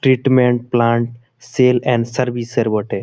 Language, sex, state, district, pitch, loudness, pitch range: Bengali, male, West Bengal, Malda, 120 Hz, -16 LUFS, 115-125 Hz